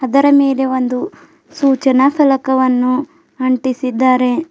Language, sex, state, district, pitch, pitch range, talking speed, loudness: Kannada, female, Karnataka, Bidar, 260 Hz, 255-275 Hz, 80 wpm, -14 LUFS